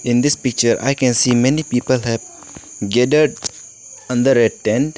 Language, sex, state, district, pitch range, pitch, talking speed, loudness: English, male, Arunachal Pradesh, Lower Dibang Valley, 120-135 Hz, 125 Hz, 170 wpm, -16 LUFS